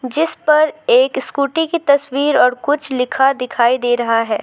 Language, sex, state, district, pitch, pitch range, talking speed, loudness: Hindi, female, West Bengal, Alipurduar, 280 Hz, 250-310 Hz, 175 wpm, -15 LUFS